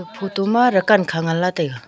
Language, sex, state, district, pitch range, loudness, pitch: Wancho, female, Arunachal Pradesh, Longding, 165-210 Hz, -18 LUFS, 185 Hz